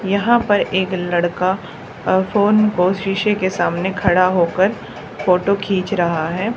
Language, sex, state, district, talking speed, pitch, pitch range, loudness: Hindi, female, Haryana, Charkhi Dadri, 145 wpm, 185 Hz, 180-200 Hz, -17 LUFS